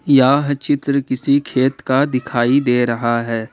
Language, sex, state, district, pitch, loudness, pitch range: Hindi, male, Jharkhand, Ranchi, 130 Hz, -17 LUFS, 120-140 Hz